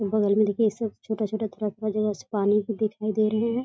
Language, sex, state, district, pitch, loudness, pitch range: Hindi, female, Bihar, East Champaran, 215 Hz, -26 LUFS, 210-220 Hz